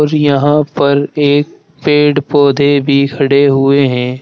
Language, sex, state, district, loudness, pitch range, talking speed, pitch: Hindi, male, Uttar Pradesh, Saharanpur, -11 LUFS, 140-145 Hz, 140 wpm, 140 Hz